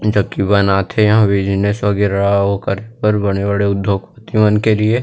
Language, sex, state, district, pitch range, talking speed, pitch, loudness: Chhattisgarhi, male, Chhattisgarh, Rajnandgaon, 100-105 Hz, 165 wpm, 100 Hz, -15 LUFS